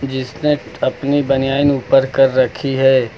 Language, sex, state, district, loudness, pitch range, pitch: Hindi, male, Uttar Pradesh, Lucknow, -16 LUFS, 130-140 Hz, 135 Hz